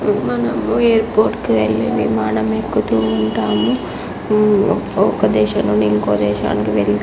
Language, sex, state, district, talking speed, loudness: Telugu, female, Andhra Pradesh, Srikakulam, 120 wpm, -16 LUFS